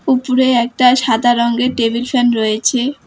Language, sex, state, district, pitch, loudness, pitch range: Bengali, female, West Bengal, Alipurduar, 245 Hz, -14 LUFS, 235-255 Hz